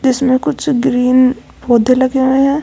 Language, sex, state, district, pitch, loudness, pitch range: Hindi, female, Rajasthan, Jaipur, 260 Hz, -13 LUFS, 255-270 Hz